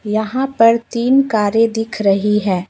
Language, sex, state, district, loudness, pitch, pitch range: Hindi, female, West Bengal, Alipurduar, -15 LUFS, 225 Hz, 210-235 Hz